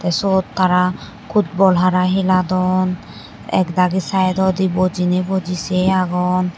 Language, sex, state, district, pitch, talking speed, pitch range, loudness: Chakma, female, Tripura, West Tripura, 185 Hz, 125 wpm, 180-190 Hz, -17 LUFS